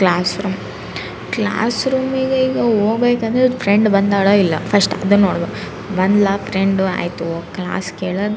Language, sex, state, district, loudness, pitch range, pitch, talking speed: Kannada, female, Karnataka, Raichur, -17 LUFS, 190-225 Hz, 200 Hz, 135 wpm